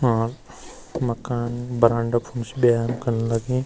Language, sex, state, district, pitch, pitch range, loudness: Garhwali, male, Uttarakhand, Uttarkashi, 120 Hz, 115-120 Hz, -23 LUFS